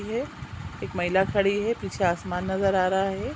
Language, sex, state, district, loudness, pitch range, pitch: Hindi, female, Chhattisgarh, Sukma, -26 LUFS, 185-200 Hz, 195 Hz